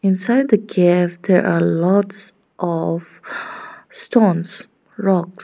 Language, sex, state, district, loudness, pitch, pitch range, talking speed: English, female, Arunachal Pradesh, Lower Dibang Valley, -17 LUFS, 190 Hz, 175-215 Hz, 100 wpm